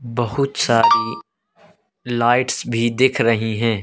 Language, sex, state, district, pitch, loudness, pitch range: Hindi, male, Madhya Pradesh, Katni, 115 Hz, -18 LUFS, 115-125 Hz